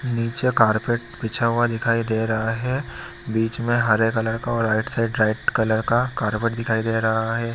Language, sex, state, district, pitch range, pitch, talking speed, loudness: Hindi, male, Chhattisgarh, Bilaspur, 110-120 Hz, 115 Hz, 190 wpm, -22 LUFS